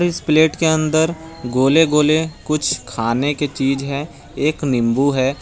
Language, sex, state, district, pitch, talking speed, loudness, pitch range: Hindi, male, Jharkhand, Garhwa, 145 Hz, 155 wpm, -17 LUFS, 135-160 Hz